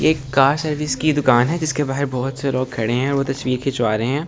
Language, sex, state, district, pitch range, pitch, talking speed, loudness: Hindi, male, Delhi, New Delhi, 130-150 Hz, 135 Hz, 265 wpm, -19 LUFS